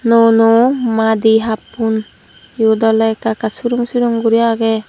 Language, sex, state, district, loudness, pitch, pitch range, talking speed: Chakma, female, Tripura, Dhalai, -14 LUFS, 225 Hz, 220-230 Hz, 145 wpm